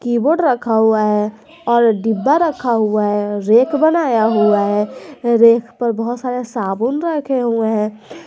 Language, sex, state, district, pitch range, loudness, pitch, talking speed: Hindi, female, Jharkhand, Garhwa, 215-255 Hz, -16 LUFS, 230 Hz, 150 wpm